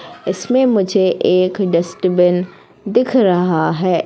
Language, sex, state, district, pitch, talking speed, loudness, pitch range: Hindi, female, Madhya Pradesh, Katni, 185 Hz, 105 wpm, -15 LUFS, 180-200 Hz